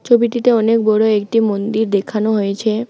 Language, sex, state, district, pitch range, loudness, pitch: Bengali, female, West Bengal, Alipurduar, 210-230 Hz, -15 LUFS, 220 Hz